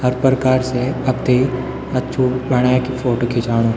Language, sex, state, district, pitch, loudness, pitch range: Garhwali, male, Uttarakhand, Tehri Garhwal, 125 Hz, -18 LUFS, 125-130 Hz